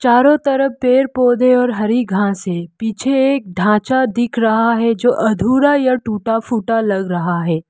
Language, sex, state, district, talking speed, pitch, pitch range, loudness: Hindi, female, Arunachal Pradesh, Lower Dibang Valley, 170 wpm, 230 Hz, 210-255 Hz, -15 LUFS